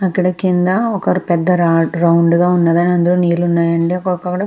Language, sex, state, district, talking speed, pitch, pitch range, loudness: Telugu, female, Andhra Pradesh, Krishna, 145 wpm, 175 Hz, 170-180 Hz, -14 LUFS